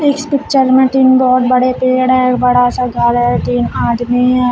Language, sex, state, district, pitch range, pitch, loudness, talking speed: Hindi, female, Uttar Pradesh, Shamli, 245-260 Hz, 255 Hz, -12 LUFS, 210 wpm